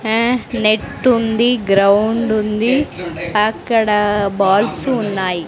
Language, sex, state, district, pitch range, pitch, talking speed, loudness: Telugu, female, Andhra Pradesh, Sri Satya Sai, 200-235 Hz, 215 Hz, 90 wpm, -16 LUFS